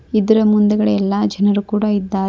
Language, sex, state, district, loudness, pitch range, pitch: Kannada, female, Karnataka, Koppal, -15 LUFS, 205-215 Hz, 210 Hz